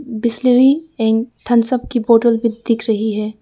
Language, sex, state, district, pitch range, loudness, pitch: Hindi, female, Arunachal Pradesh, Lower Dibang Valley, 225-245 Hz, -16 LUFS, 230 Hz